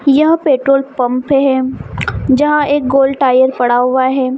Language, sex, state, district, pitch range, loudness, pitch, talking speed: Hindi, female, Bihar, East Champaran, 260-280 Hz, -12 LUFS, 270 Hz, 150 wpm